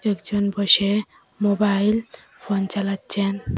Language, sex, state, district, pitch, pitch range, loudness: Bengali, female, Assam, Hailakandi, 200 Hz, 200-210 Hz, -20 LUFS